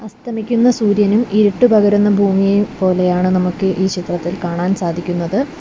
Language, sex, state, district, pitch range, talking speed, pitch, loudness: Malayalam, female, Kerala, Kollam, 180-215 Hz, 120 wpm, 200 Hz, -15 LUFS